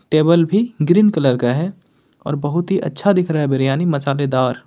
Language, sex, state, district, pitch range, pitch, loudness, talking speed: Hindi, male, Jharkhand, Ranchi, 140-180 Hz, 155 Hz, -17 LUFS, 195 wpm